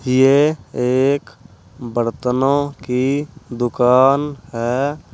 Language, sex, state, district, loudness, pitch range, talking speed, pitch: Hindi, male, Uttar Pradesh, Saharanpur, -17 LUFS, 120-140 Hz, 70 wpm, 130 Hz